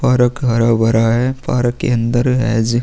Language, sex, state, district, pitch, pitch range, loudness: Hindi, male, Uttar Pradesh, Jalaun, 120 Hz, 115-125 Hz, -15 LUFS